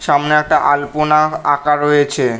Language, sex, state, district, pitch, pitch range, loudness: Bengali, male, West Bengal, North 24 Parganas, 145 Hz, 145-150 Hz, -14 LUFS